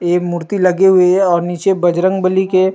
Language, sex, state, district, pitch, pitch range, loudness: Chhattisgarhi, male, Chhattisgarh, Rajnandgaon, 185 Hz, 175-190 Hz, -13 LUFS